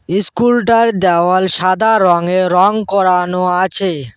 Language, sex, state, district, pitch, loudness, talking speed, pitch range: Bengali, male, West Bengal, Cooch Behar, 185 Hz, -12 LUFS, 115 wpm, 180-205 Hz